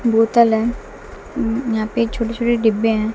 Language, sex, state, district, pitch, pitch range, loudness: Hindi, female, Bihar, West Champaran, 230 Hz, 225-235 Hz, -18 LUFS